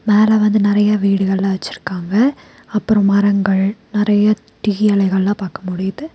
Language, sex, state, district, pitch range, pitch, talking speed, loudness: Tamil, female, Tamil Nadu, Nilgiris, 195-210 Hz, 205 Hz, 115 wpm, -16 LUFS